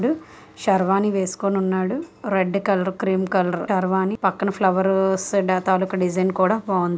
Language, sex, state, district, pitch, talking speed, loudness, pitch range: Telugu, female, Andhra Pradesh, Guntur, 190 Hz, 130 wpm, -21 LUFS, 185-200 Hz